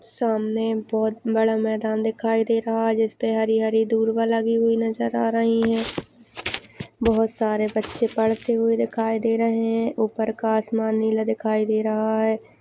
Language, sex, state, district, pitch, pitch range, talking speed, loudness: Hindi, female, Maharashtra, Pune, 225 Hz, 220-225 Hz, 165 wpm, -23 LUFS